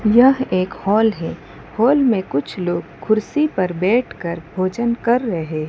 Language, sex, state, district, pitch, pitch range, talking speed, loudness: Hindi, female, Gujarat, Valsad, 210 Hz, 175-235 Hz, 170 wpm, -19 LUFS